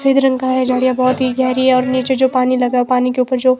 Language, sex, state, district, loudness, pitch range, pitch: Hindi, female, Himachal Pradesh, Shimla, -15 LUFS, 255-260 Hz, 255 Hz